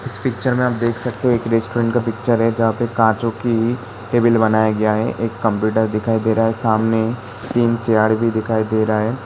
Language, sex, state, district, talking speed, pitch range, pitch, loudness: Hindi, male, Uttar Pradesh, Hamirpur, 220 wpm, 110-120 Hz, 115 Hz, -18 LUFS